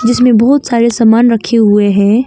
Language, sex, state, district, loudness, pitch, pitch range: Hindi, female, Arunachal Pradesh, Longding, -9 LUFS, 235 Hz, 215-245 Hz